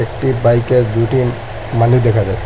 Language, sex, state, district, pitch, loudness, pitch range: Bengali, male, Assam, Hailakandi, 115 Hz, -14 LUFS, 110-125 Hz